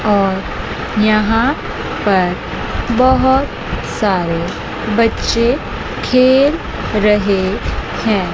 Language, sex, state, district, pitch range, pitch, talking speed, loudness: Hindi, female, Chandigarh, Chandigarh, 200-255 Hz, 215 Hz, 65 wpm, -15 LUFS